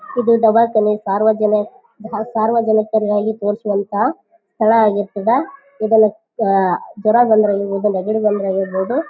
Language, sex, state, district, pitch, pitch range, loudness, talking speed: Kannada, female, Karnataka, Bijapur, 215 Hz, 205-225 Hz, -16 LUFS, 105 wpm